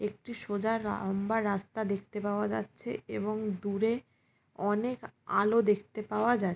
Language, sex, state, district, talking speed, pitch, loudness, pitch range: Bengali, female, West Bengal, Jalpaiguri, 135 wpm, 210 Hz, -32 LUFS, 205-225 Hz